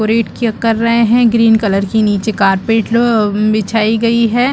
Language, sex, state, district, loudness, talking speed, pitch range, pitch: Hindi, female, Chhattisgarh, Bastar, -12 LUFS, 185 wpm, 215-230 Hz, 225 Hz